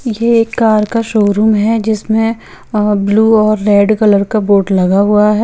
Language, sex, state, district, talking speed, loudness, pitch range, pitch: Hindi, female, Chandigarh, Chandigarh, 200 wpm, -11 LUFS, 205-225 Hz, 215 Hz